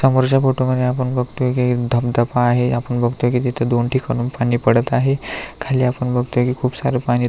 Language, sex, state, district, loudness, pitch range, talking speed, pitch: Marathi, male, Maharashtra, Aurangabad, -18 LUFS, 120-130 Hz, 215 wpm, 125 Hz